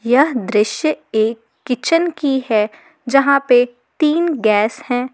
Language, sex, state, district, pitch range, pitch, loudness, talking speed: Hindi, female, Jharkhand, Garhwa, 225-305 Hz, 250 Hz, -16 LUFS, 130 wpm